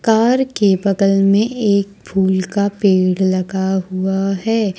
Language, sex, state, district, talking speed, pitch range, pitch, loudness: Hindi, female, Jharkhand, Ranchi, 135 wpm, 190-205 Hz, 195 Hz, -16 LUFS